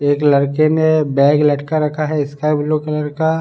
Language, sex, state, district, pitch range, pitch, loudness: Hindi, male, Bihar, Sitamarhi, 145-155 Hz, 150 Hz, -16 LUFS